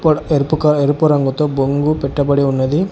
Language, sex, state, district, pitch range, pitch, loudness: Telugu, male, Telangana, Hyderabad, 140-155 Hz, 145 Hz, -15 LUFS